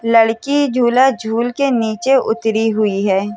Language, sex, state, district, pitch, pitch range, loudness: Hindi, female, Uttar Pradesh, Hamirpur, 225 Hz, 220-260 Hz, -15 LUFS